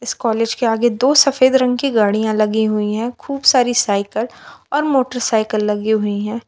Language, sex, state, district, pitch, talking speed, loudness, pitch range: Hindi, female, Jharkhand, Palamu, 230 Hz, 185 wpm, -16 LUFS, 215-255 Hz